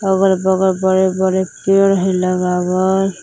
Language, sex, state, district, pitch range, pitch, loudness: Magahi, female, Jharkhand, Palamu, 185-190 Hz, 190 Hz, -15 LUFS